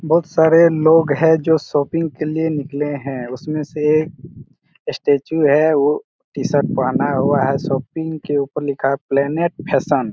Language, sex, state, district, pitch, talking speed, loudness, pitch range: Hindi, male, Chhattisgarh, Raigarh, 155 Hz, 155 wpm, -17 LUFS, 145-160 Hz